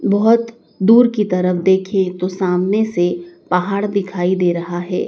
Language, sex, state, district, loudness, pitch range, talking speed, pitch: Hindi, male, Madhya Pradesh, Dhar, -16 LUFS, 180-205 Hz, 155 wpm, 190 Hz